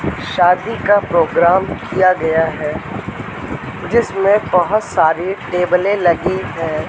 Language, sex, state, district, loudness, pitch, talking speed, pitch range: Hindi, male, Madhya Pradesh, Katni, -16 LUFS, 180 Hz, 105 wpm, 165-195 Hz